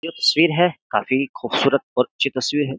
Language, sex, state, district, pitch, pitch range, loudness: Hindi, male, Uttar Pradesh, Jyotiba Phule Nagar, 145 Hz, 130-165 Hz, -20 LUFS